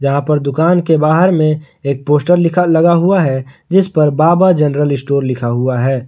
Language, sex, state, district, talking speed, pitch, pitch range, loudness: Hindi, male, Jharkhand, Garhwa, 195 wpm, 150 Hz, 140-170 Hz, -13 LUFS